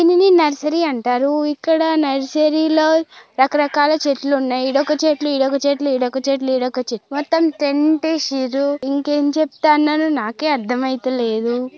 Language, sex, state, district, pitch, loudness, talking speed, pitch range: Telugu, female, Telangana, Karimnagar, 285 Hz, -17 LUFS, 130 wpm, 265-310 Hz